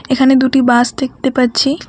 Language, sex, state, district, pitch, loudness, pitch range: Bengali, female, West Bengal, Alipurduar, 265 Hz, -13 LUFS, 255-265 Hz